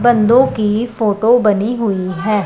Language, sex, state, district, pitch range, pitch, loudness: Hindi, female, Punjab, Pathankot, 210-240 Hz, 215 Hz, -14 LUFS